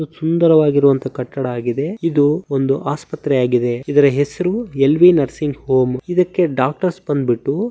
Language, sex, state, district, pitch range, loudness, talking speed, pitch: Kannada, male, Karnataka, Bellary, 135-165 Hz, -17 LUFS, 110 wpm, 145 Hz